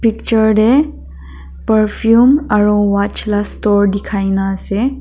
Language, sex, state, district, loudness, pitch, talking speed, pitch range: Nagamese, female, Nagaland, Dimapur, -13 LUFS, 210 Hz, 110 wpm, 200-225 Hz